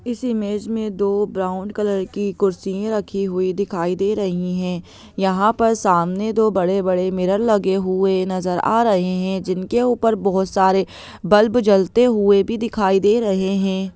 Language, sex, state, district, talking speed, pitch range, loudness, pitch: Hindi, female, Bihar, Begusarai, 165 wpm, 185-215 Hz, -19 LUFS, 195 Hz